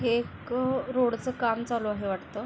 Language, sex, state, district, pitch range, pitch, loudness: Marathi, female, Maharashtra, Aurangabad, 220-250 Hz, 235 Hz, -29 LUFS